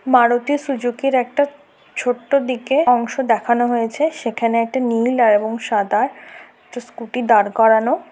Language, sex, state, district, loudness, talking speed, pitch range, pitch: Bengali, female, West Bengal, Purulia, -18 LUFS, 125 wpm, 230-270 Hz, 245 Hz